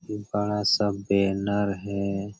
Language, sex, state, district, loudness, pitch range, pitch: Hindi, male, Jharkhand, Sahebganj, -25 LUFS, 100-105 Hz, 100 Hz